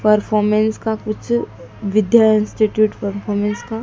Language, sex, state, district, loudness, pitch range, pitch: Hindi, female, Madhya Pradesh, Dhar, -17 LUFS, 205-220 Hz, 215 Hz